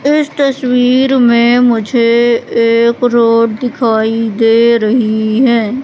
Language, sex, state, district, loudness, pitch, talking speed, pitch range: Hindi, female, Madhya Pradesh, Katni, -11 LUFS, 235 Hz, 105 wpm, 230-250 Hz